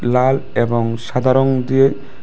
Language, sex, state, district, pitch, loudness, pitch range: Bengali, male, Tripura, West Tripura, 130 Hz, -16 LUFS, 120-135 Hz